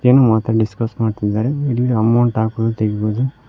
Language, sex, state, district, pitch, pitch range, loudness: Kannada, male, Karnataka, Koppal, 115 Hz, 110-125 Hz, -17 LUFS